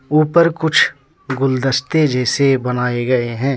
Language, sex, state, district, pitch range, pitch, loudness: Hindi, male, Jharkhand, Deoghar, 125-155 Hz, 135 Hz, -16 LUFS